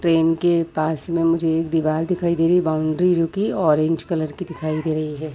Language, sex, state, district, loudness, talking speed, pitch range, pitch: Hindi, female, Chhattisgarh, Bilaspur, -20 LUFS, 235 wpm, 155-170 Hz, 165 Hz